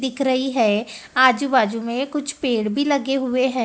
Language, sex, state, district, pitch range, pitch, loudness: Hindi, female, Maharashtra, Gondia, 230-270 Hz, 260 Hz, -20 LUFS